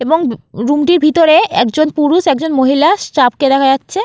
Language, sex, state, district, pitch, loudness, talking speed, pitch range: Bengali, female, West Bengal, Jalpaiguri, 300 Hz, -12 LUFS, 160 wpm, 270-320 Hz